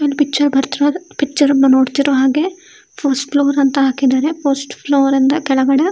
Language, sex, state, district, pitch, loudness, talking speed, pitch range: Kannada, female, Karnataka, Shimoga, 280 Hz, -15 LUFS, 150 wpm, 270-290 Hz